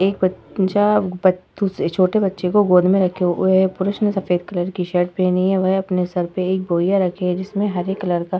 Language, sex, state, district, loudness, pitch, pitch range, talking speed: Hindi, female, Uttar Pradesh, Etah, -19 LUFS, 185 Hz, 180-195 Hz, 235 wpm